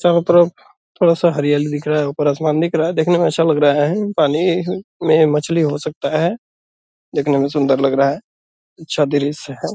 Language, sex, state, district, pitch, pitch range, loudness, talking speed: Hindi, male, Bihar, Purnia, 155 Hz, 145-170 Hz, -16 LUFS, 210 wpm